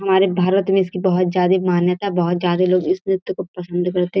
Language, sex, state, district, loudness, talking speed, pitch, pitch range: Hindi, female, Uttar Pradesh, Gorakhpur, -18 LUFS, 230 wpm, 185 Hz, 180-195 Hz